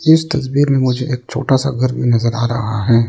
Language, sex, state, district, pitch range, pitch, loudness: Hindi, male, Arunachal Pradesh, Lower Dibang Valley, 120-135 Hz, 130 Hz, -16 LUFS